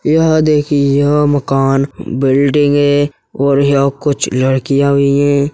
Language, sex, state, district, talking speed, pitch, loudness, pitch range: Hindi, male, Uttar Pradesh, Hamirpur, 120 wpm, 140 Hz, -12 LUFS, 140-145 Hz